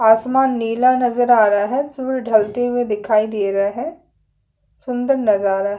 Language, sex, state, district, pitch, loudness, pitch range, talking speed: Hindi, female, Chhattisgarh, Sukma, 240 Hz, -17 LUFS, 210-255 Hz, 165 wpm